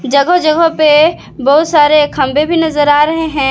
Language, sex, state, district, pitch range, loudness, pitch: Hindi, female, Jharkhand, Palamu, 290-320 Hz, -10 LUFS, 300 Hz